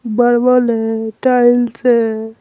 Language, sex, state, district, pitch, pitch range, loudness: Hindi, male, Bihar, Patna, 240 Hz, 225-245 Hz, -14 LUFS